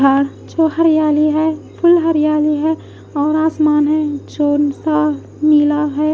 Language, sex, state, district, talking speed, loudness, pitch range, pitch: Hindi, female, Odisha, Khordha, 125 wpm, -15 LUFS, 295-315 Hz, 305 Hz